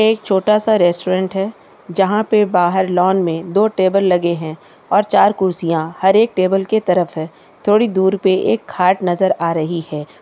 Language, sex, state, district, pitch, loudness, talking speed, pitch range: Hindi, female, Chhattisgarh, Kabirdham, 190 Hz, -16 LUFS, 190 wpm, 175-205 Hz